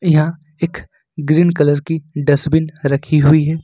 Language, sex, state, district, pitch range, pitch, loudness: Hindi, male, Jharkhand, Ranchi, 150-160 Hz, 155 Hz, -15 LUFS